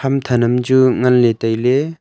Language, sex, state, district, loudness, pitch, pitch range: Wancho, male, Arunachal Pradesh, Longding, -14 LUFS, 125 Hz, 120-135 Hz